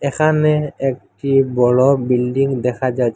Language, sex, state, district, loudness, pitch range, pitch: Bengali, male, Assam, Hailakandi, -16 LUFS, 125-140 Hz, 135 Hz